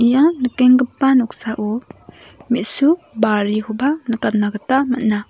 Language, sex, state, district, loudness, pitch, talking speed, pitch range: Garo, female, Meghalaya, South Garo Hills, -17 LUFS, 240 Hz, 90 wpm, 215-265 Hz